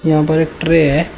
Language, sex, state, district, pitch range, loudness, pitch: Hindi, male, Uttar Pradesh, Shamli, 155-165 Hz, -14 LUFS, 160 Hz